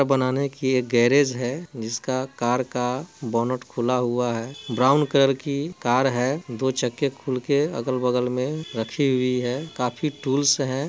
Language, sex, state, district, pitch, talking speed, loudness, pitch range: Hindi, male, Bihar, Muzaffarpur, 130 Hz, 170 wpm, -23 LUFS, 125-140 Hz